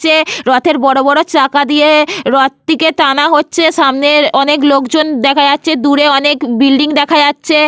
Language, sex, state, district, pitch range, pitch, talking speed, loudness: Bengali, female, Jharkhand, Sahebganj, 275-310 Hz, 295 Hz, 140 wpm, -10 LUFS